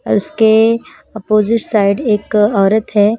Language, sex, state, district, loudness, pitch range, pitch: Hindi, female, Himachal Pradesh, Shimla, -13 LUFS, 210-230 Hz, 215 Hz